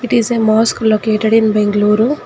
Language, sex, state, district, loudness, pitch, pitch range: English, female, Karnataka, Bangalore, -13 LUFS, 220 Hz, 215-230 Hz